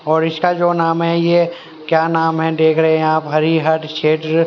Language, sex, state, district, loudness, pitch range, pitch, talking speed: Hindi, male, Haryana, Rohtak, -15 LUFS, 160-165 Hz, 160 Hz, 200 wpm